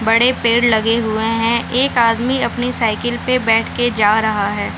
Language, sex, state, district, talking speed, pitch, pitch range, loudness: Hindi, female, Bihar, Samastipur, 190 wpm, 230 Hz, 220-240 Hz, -16 LUFS